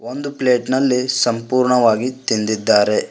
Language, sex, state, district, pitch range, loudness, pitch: Kannada, male, Karnataka, Koppal, 115-130 Hz, -17 LUFS, 125 Hz